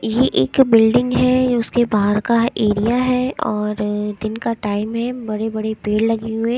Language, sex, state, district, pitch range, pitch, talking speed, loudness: Hindi, female, Haryana, Charkhi Dadri, 210-240 Hz, 225 Hz, 165 wpm, -18 LUFS